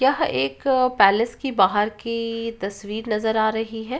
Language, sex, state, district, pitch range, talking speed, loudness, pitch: Hindi, female, Uttar Pradesh, Ghazipur, 205-235 Hz, 165 wpm, -22 LUFS, 225 Hz